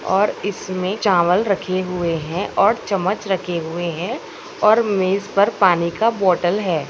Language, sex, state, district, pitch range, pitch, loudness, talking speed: Hindi, female, Bihar, Saharsa, 175-200 Hz, 185 Hz, -19 LUFS, 155 wpm